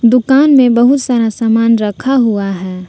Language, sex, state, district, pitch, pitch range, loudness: Hindi, female, Jharkhand, Palamu, 235 Hz, 210-260 Hz, -11 LUFS